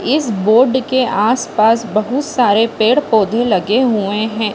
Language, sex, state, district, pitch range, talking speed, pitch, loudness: Hindi, female, Chhattisgarh, Bilaspur, 215-255 Hz, 130 wpm, 225 Hz, -14 LUFS